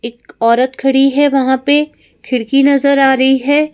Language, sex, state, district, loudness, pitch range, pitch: Hindi, female, Madhya Pradesh, Bhopal, -12 LUFS, 260-285 Hz, 270 Hz